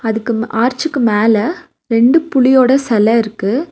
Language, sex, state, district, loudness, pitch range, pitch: Tamil, female, Tamil Nadu, Nilgiris, -13 LUFS, 225-270 Hz, 235 Hz